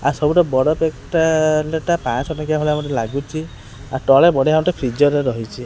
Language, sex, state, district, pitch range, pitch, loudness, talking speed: Odia, male, Odisha, Khordha, 130-160 Hz, 150 Hz, -17 LUFS, 180 wpm